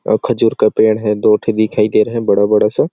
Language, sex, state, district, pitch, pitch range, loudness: Hindi, male, Chhattisgarh, Sarguja, 110 Hz, 105-110 Hz, -14 LUFS